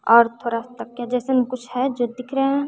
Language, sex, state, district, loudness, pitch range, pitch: Hindi, female, Bihar, West Champaran, -22 LUFS, 240-260 Hz, 250 Hz